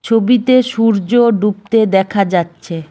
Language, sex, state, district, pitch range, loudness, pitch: Bengali, female, West Bengal, Cooch Behar, 190-230 Hz, -13 LUFS, 210 Hz